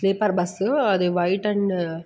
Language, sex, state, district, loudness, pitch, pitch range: Telugu, female, Andhra Pradesh, Guntur, -22 LUFS, 195 Hz, 180-205 Hz